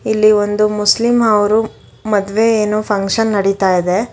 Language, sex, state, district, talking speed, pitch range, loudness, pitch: Kannada, female, Karnataka, Bangalore, 130 wpm, 200-220 Hz, -14 LUFS, 210 Hz